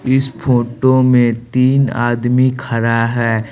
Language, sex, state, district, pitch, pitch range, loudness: Hindi, male, Bihar, West Champaran, 120 Hz, 115-130 Hz, -14 LUFS